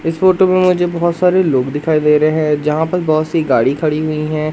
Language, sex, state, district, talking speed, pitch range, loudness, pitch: Hindi, male, Madhya Pradesh, Katni, 250 wpm, 150-175 Hz, -14 LUFS, 155 Hz